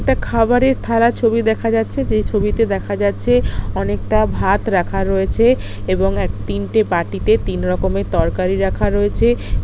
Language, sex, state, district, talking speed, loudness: Bengali, female, West Bengal, Kolkata, 145 wpm, -17 LUFS